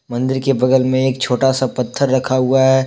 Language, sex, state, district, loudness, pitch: Hindi, male, Jharkhand, Deoghar, -16 LUFS, 130 Hz